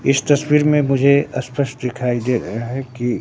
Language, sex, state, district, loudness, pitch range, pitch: Hindi, male, Bihar, Katihar, -18 LUFS, 125-140 Hz, 135 Hz